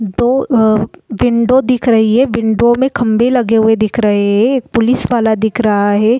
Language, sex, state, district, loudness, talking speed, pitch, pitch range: Hindi, female, Chhattisgarh, Balrampur, -12 LUFS, 205 wpm, 230 Hz, 220-245 Hz